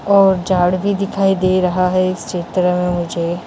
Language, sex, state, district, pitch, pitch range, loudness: Hindi, female, Maharashtra, Mumbai Suburban, 185 Hz, 180-195 Hz, -16 LUFS